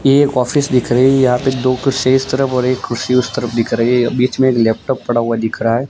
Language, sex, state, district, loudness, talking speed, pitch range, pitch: Hindi, male, Gujarat, Gandhinagar, -15 LUFS, 295 wpm, 120-130 Hz, 125 Hz